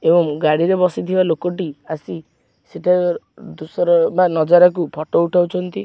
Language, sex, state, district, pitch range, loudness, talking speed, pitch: Odia, male, Odisha, Khordha, 160-180 Hz, -17 LUFS, 115 wpm, 175 Hz